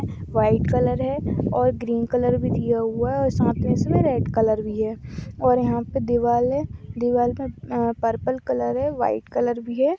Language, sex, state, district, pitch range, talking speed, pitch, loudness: Hindi, female, Jharkhand, Sahebganj, 230-255 Hz, 200 wpm, 240 Hz, -22 LUFS